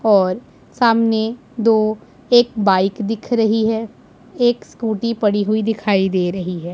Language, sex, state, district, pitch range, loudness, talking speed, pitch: Hindi, male, Punjab, Pathankot, 205-230 Hz, -18 LUFS, 140 wpm, 220 Hz